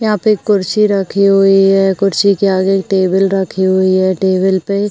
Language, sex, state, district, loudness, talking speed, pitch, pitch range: Hindi, female, Uttar Pradesh, Jyotiba Phule Nagar, -12 LUFS, 210 wpm, 195 Hz, 190-200 Hz